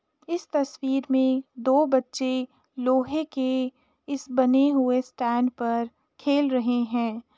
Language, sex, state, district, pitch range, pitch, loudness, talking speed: Hindi, female, Uttar Pradesh, Jalaun, 250-275 Hz, 260 Hz, -25 LUFS, 120 wpm